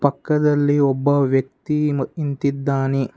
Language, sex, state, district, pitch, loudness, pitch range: Kannada, male, Karnataka, Bangalore, 140 Hz, -19 LUFS, 135-145 Hz